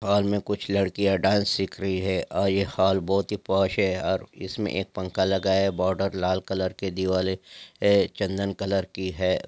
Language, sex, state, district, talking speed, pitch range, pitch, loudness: Angika, male, Bihar, Madhepura, 190 wpm, 95-100 Hz, 95 Hz, -25 LUFS